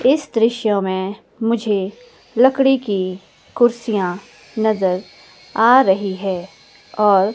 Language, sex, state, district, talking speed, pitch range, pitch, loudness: Hindi, female, Himachal Pradesh, Shimla, 100 wpm, 190-240 Hz, 215 Hz, -18 LUFS